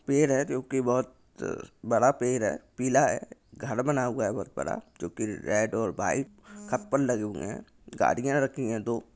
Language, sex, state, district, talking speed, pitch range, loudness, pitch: Hindi, male, Maharashtra, Pune, 175 wpm, 110-135 Hz, -28 LUFS, 125 Hz